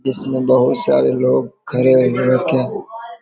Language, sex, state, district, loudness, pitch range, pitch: Hindi, male, Bihar, Vaishali, -15 LUFS, 125-130 Hz, 130 Hz